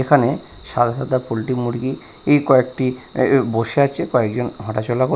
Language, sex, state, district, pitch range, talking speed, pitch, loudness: Bengali, male, Odisha, Nuapada, 120-130 Hz, 160 wpm, 130 Hz, -19 LUFS